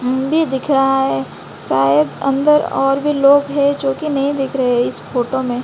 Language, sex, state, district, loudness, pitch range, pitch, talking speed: Hindi, female, Odisha, Malkangiri, -16 LUFS, 245-280 Hz, 270 Hz, 190 wpm